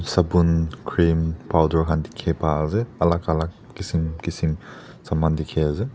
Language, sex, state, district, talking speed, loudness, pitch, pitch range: Nagamese, male, Nagaland, Dimapur, 120 wpm, -22 LUFS, 80 Hz, 80-85 Hz